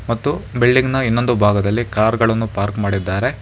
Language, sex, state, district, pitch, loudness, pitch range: Kannada, male, Karnataka, Bangalore, 115 Hz, -17 LUFS, 100-120 Hz